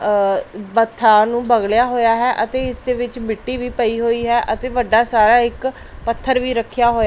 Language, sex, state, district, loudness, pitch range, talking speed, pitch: Punjabi, female, Punjab, Pathankot, -17 LUFS, 225-245 Hz, 185 wpm, 235 Hz